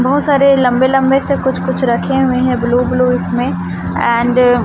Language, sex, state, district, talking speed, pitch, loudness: Hindi, female, Chhattisgarh, Raipur, 195 wpm, 250 Hz, -13 LUFS